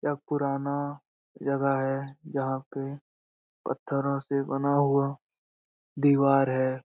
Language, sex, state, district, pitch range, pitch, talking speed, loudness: Hindi, male, Bihar, Lakhisarai, 135-140 Hz, 140 Hz, 115 wpm, -28 LUFS